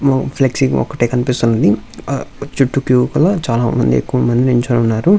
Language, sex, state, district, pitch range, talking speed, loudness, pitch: Telugu, male, Andhra Pradesh, Visakhapatnam, 120-135 Hz, 140 wpm, -15 LUFS, 125 Hz